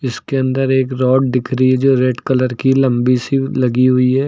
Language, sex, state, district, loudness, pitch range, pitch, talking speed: Hindi, male, Uttar Pradesh, Lucknow, -15 LUFS, 125-135 Hz, 130 Hz, 225 wpm